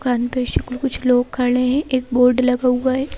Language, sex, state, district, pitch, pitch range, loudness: Hindi, female, Madhya Pradesh, Bhopal, 255 Hz, 250-260 Hz, -18 LUFS